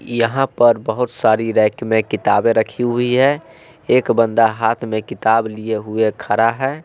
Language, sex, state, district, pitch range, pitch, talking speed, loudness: Hindi, male, Bihar, West Champaran, 110-120 Hz, 115 Hz, 165 wpm, -17 LUFS